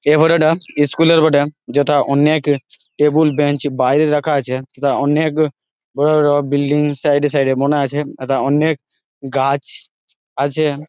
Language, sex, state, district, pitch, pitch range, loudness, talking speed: Bengali, male, West Bengal, Jalpaiguri, 145 Hz, 140-150 Hz, -16 LUFS, 155 wpm